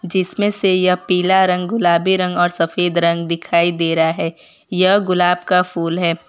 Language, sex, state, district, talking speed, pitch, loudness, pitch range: Hindi, female, Gujarat, Valsad, 180 wpm, 180 Hz, -16 LUFS, 170-185 Hz